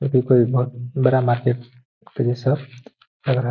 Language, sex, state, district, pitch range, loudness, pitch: Hindi, male, Bihar, Gaya, 125-130 Hz, -20 LUFS, 125 Hz